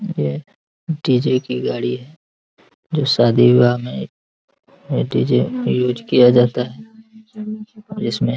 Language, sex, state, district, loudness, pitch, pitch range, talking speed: Hindi, male, Bihar, Araria, -17 LUFS, 125 Hz, 120-175 Hz, 120 wpm